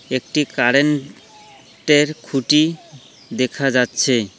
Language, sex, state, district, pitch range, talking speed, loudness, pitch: Bengali, male, West Bengal, Cooch Behar, 130-150 Hz, 80 wpm, -17 LUFS, 135 Hz